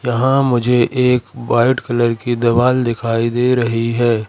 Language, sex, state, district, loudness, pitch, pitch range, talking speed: Hindi, male, Madhya Pradesh, Katni, -15 LUFS, 120 Hz, 115-125 Hz, 155 wpm